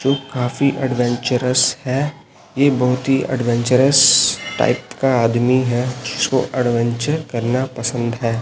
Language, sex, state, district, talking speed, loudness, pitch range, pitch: Hindi, male, Chhattisgarh, Raipur, 120 wpm, -17 LUFS, 120-135 Hz, 125 Hz